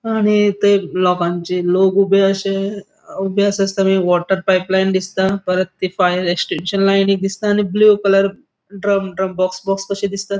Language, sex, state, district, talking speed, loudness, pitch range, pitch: Konkani, male, Goa, North and South Goa, 165 wpm, -16 LUFS, 185-200 Hz, 195 Hz